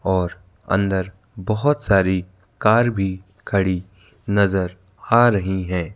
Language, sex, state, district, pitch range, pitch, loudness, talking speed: Hindi, male, Madhya Pradesh, Bhopal, 95-105 Hz, 95 Hz, -20 LUFS, 110 wpm